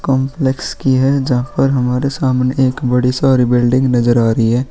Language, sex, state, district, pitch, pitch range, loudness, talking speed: Hindi, male, Bihar, Vaishali, 130 Hz, 125-135 Hz, -14 LUFS, 190 wpm